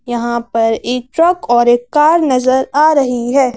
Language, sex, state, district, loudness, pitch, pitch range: Hindi, female, Madhya Pradesh, Bhopal, -13 LUFS, 250 Hz, 240-285 Hz